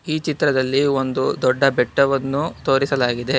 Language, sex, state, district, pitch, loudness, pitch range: Kannada, male, Karnataka, Bangalore, 135 Hz, -19 LUFS, 130-140 Hz